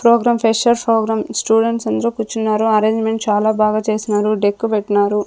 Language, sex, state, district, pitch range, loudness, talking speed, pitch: Telugu, female, Andhra Pradesh, Sri Satya Sai, 215-225 Hz, -16 LUFS, 135 wpm, 220 Hz